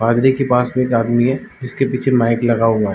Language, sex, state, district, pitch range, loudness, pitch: Hindi, male, Uttar Pradesh, Gorakhpur, 115-130 Hz, -16 LUFS, 125 Hz